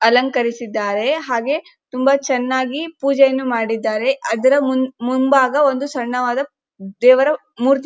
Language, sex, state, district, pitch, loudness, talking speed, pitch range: Kannada, female, Karnataka, Dharwad, 260 Hz, -17 LUFS, 100 wpm, 240-275 Hz